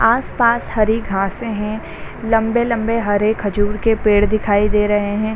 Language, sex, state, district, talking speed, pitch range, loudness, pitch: Hindi, female, Bihar, Sitamarhi, 145 wpm, 205-225 Hz, -17 LUFS, 215 Hz